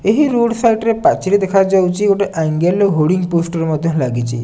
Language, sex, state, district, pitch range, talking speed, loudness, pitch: Odia, male, Odisha, Nuapada, 160-200 Hz, 175 wpm, -15 LUFS, 185 Hz